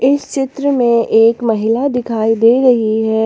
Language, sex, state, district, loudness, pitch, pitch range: Hindi, female, Jharkhand, Ranchi, -13 LUFS, 235 Hz, 225-260 Hz